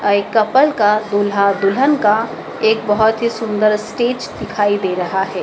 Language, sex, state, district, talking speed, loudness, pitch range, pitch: Hindi, female, Madhya Pradesh, Dhar, 155 wpm, -16 LUFS, 205-225 Hz, 210 Hz